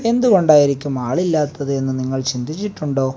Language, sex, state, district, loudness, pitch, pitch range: Malayalam, male, Kerala, Kasaragod, -18 LUFS, 140 Hz, 130-160 Hz